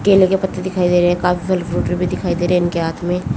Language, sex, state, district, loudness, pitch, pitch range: Hindi, female, Haryana, Jhajjar, -17 LUFS, 180 Hz, 175-185 Hz